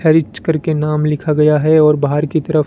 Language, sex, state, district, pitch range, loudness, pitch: Hindi, male, Rajasthan, Bikaner, 150-160 Hz, -14 LUFS, 155 Hz